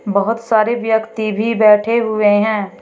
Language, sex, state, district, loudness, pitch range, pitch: Hindi, female, Uttar Pradesh, Shamli, -15 LUFS, 210-225 Hz, 220 Hz